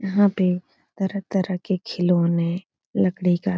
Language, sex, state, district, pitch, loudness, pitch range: Hindi, female, Bihar, Supaul, 185 Hz, -23 LUFS, 175-195 Hz